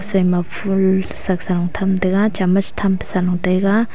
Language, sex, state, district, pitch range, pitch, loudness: Wancho, female, Arunachal Pradesh, Longding, 180-195 Hz, 190 Hz, -18 LUFS